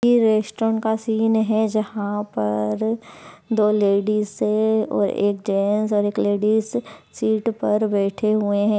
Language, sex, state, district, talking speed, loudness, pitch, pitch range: Hindi, male, Bihar, Madhepura, 145 wpm, -21 LUFS, 215 Hz, 205-220 Hz